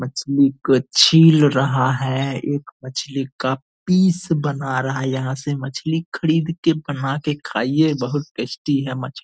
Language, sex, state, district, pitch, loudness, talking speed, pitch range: Angika, male, Bihar, Purnia, 140 Hz, -19 LUFS, 160 wpm, 130-155 Hz